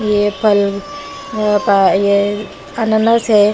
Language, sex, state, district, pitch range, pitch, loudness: Hindi, female, Punjab, Pathankot, 200-225 Hz, 210 Hz, -14 LUFS